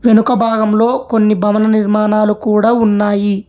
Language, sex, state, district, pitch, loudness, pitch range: Telugu, male, Telangana, Hyderabad, 215 Hz, -12 LUFS, 210-225 Hz